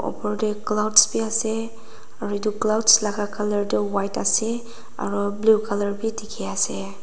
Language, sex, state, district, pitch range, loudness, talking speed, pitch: Nagamese, female, Nagaland, Dimapur, 205-220 Hz, -22 LUFS, 160 wpm, 210 Hz